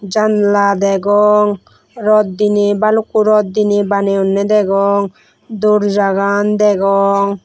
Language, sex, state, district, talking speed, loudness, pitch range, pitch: Chakma, female, Tripura, West Tripura, 95 wpm, -13 LUFS, 200-210 Hz, 205 Hz